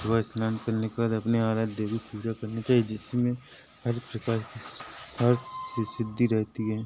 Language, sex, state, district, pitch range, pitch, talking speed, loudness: Hindi, male, Chhattisgarh, Rajnandgaon, 110-120 Hz, 115 Hz, 165 wpm, -29 LUFS